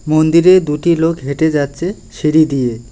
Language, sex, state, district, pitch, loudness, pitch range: Bengali, male, West Bengal, Alipurduar, 155 Hz, -13 LUFS, 140-165 Hz